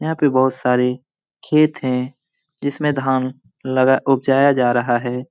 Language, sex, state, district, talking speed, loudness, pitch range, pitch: Hindi, male, Bihar, Lakhisarai, 145 wpm, -18 LUFS, 125-145 Hz, 130 Hz